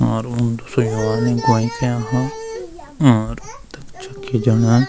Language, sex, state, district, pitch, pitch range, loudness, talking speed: Garhwali, male, Uttarakhand, Uttarkashi, 120 Hz, 115-130 Hz, -18 LUFS, 75 wpm